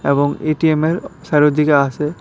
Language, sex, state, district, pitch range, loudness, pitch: Bengali, male, Tripura, West Tripura, 145-155 Hz, -16 LUFS, 150 Hz